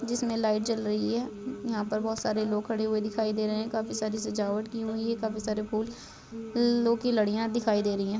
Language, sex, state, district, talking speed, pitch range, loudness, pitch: Hindi, female, Uttar Pradesh, Budaun, 220 wpm, 215-230 Hz, -29 LUFS, 220 Hz